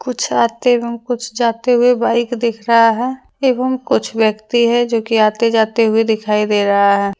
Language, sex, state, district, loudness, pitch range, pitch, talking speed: Hindi, female, Jharkhand, Deoghar, -15 LUFS, 220-245 Hz, 235 Hz, 190 wpm